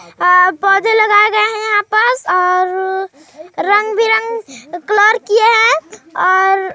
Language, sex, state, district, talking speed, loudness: Hindi, male, Chhattisgarh, Sarguja, 115 wpm, -12 LUFS